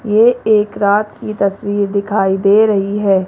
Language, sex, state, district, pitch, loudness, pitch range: Hindi, female, Rajasthan, Jaipur, 205 Hz, -14 LUFS, 200-215 Hz